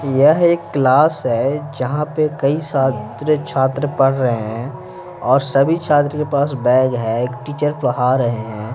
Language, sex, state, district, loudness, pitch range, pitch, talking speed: Hindi, male, Bihar, Patna, -17 LUFS, 125-150 Hz, 135 Hz, 160 wpm